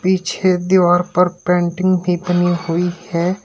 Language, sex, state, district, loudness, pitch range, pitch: Hindi, male, Uttar Pradesh, Shamli, -16 LUFS, 175-185 Hz, 180 Hz